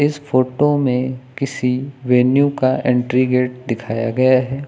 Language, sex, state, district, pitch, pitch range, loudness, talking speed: Hindi, male, Uttar Pradesh, Lucknow, 130 Hz, 125-135 Hz, -17 LUFS, 140 wpm